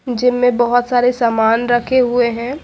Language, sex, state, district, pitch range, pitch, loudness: Hindi, female, Delhi, New Delhi, 240-250 Hz, 245 Hz, -15 LUFS